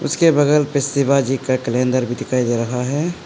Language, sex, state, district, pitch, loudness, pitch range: Hindi, male, Arunachal Pradesh, Papum Pare, 135 Hz, -18 LUFS, 125-145 Hz